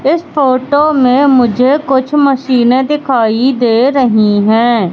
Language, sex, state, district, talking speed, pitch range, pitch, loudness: Hindi, female, Madhya Pradesh, Katni, 120 wpm, 235-280 Hz, 260 Hz, -10 LUFS